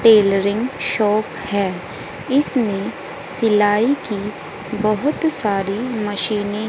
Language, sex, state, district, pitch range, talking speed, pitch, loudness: Hindi, female, Haryana, Jhajjar, 205-240 Hz, 90 wpm, 210 Hz, -19 LUFS